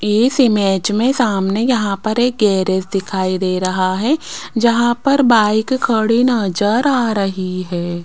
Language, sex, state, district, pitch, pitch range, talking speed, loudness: Hindi, female, Rajasthan, Jaipur, 215 Hz, 190-240 Hz, 150 wpm, -16 LUFS